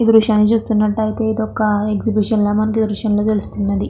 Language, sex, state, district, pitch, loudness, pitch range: Telugu, female, Andhra Pradesh, Krishna, 215 Hz, -17 LUFS, 210-220 Hz